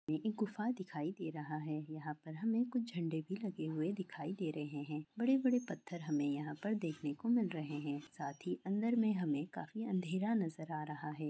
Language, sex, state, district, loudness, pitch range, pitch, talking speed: Hindi, female, Bihar, Purnia, -39 LUFS, 150-210 Hz, 165 Hz, 215 wpm